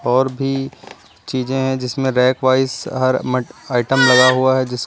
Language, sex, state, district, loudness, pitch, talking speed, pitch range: Hindi, male, Uttar Pradesh, Lucknow, -16 LUFS, 130 Hz, 160 wpm, 125-130 Hz